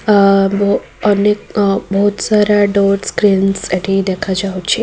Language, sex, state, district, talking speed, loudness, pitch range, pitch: Odia, female, Odisha, Khordha, 100 wpm, -14 LUFS, 195-205 Hz, 200 Hz